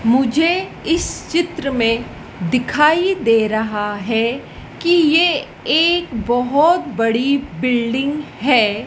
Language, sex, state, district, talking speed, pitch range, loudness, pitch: Hindi, female, Madhya Pradesh, Dhar, 100 wpm, 230-325 Hz, -17 LUFS, 260 Hz